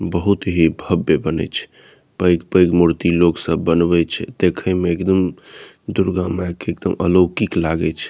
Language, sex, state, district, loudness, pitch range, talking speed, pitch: Maithili, male, Bihar, Saharsa, -18 LUFS, 85-90 Hz, 155 wpm, 90 Hz